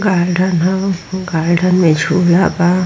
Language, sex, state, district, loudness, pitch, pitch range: Hindi, female, Bihar, Vaishali, -14 LUFS, 180 Hz, 170-185 Hz